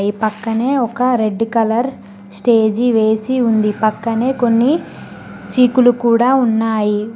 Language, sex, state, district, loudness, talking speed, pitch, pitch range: Telugu, female, Telangana, Mahabubabad, -15 LUFS, 110 wpm, 230 Hz, 220-245 Hz